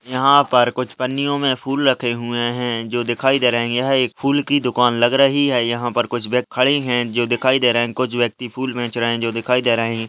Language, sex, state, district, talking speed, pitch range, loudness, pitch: Hindi, male, Rajasthan, Churu, 260 wpm, 120-130 Hz, -18 LUFS, 125 Hz